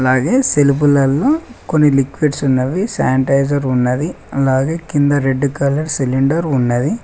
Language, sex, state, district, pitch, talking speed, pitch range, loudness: Telugu, male, Telangana, Mahabubabad, 140 Hz, 100 wpm, 135-155 Hz, -15 LUFS